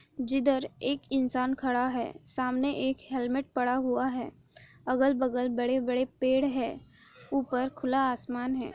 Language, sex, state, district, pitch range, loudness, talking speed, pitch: Hindi, female, Maharashtra, Chandrapur, 250-270 Hz, -30 LUFS, 130 wpm, 260 Hz